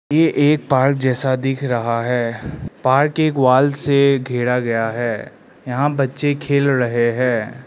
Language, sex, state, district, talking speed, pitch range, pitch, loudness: Hindi, male, Arunachal Pradesh, Lower Dibang Valley, 150 wpm, 120-140 Hz, 130 Hz, -17 LUFS